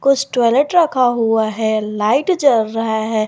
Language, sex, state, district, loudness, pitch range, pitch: Hindi, female, Jharkhand, Garhwa, -16 LUFS, 220-275 Hz, 225 Hz